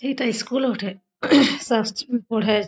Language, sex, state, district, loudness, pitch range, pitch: Bengali, female, West Bengal, Jhargram, -21 LUFS, 215-260 Hz, 235 Hz